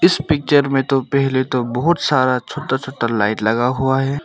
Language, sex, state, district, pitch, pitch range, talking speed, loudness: Hindi, male, Arunachal Pradesh, Longding, 135 Hz, 125-145 Hz, 155 wpm, -17 LUFS